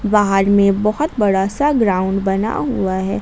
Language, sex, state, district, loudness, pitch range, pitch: Hindi, female, Jharkhand, Garhwa, -16 LUFS, 195-215 Hz, 200 Hz